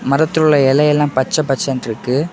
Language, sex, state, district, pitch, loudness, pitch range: Tamil, male, Tamil Nadu, Kanyakumari, 140 Hz, -15 LUFS, 130-150 Hz